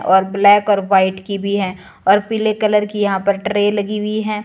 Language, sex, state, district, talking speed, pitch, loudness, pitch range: Hindi, female, Himachal Pradesh, Shimla, 230 wpm, 205 Hz, -16 LUFS, 195-210 Hz